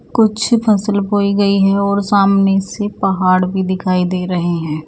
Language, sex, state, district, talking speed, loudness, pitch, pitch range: Hindi, male, Odisha, Nuapada, 170 wpm, -15 LUFS, 195 Hz, 185-205 Hz